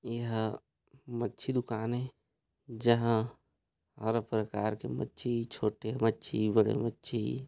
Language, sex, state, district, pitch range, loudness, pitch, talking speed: Hindi, male, Chhattisgarh, Raigarh, 110-120 Hz, -33 LUFS, 115 Hz, 105 wpm